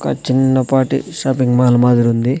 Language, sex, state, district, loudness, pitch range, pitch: Telugu, male, Andhra Pradesh, Sri Satya Sai, -14 LUFS, 125-130 Hz, 130 Hz